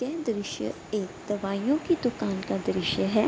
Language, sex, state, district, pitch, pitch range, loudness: Hindi, female, Bihar, Gopalganj, 215 Hz, 200-270 Hz, -29 LUFS